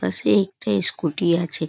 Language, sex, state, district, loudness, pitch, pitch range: Bengali, female, West Bengal, North 24 Parganas, -21 LUFS, 165 Hz, 105-175 Hz